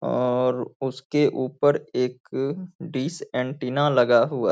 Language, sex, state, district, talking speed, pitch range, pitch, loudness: Hindi, male, Bihar, Saharsa, 120 wpm, 125-145 Hz, 130 Hz, -24 LUFS